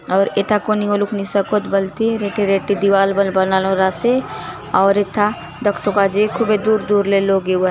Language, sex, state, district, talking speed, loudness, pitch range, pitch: Halbi, female, Chhattisgarh, Bastar, 185 wpm, -17 LUFS, 195-210 Hz, 200 Hz